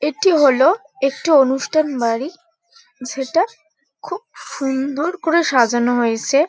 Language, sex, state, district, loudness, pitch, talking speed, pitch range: Bengali, female, West Bengal, Kolkata, -17 LUFS, 280 Hz, 100 wpm, 265-335 Hz